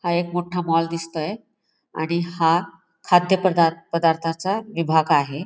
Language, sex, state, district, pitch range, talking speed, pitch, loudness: Marathi, female, Maharashtra, Pune, 165-175 Hz, 130 wpm, 165 Hz, -21 LUFS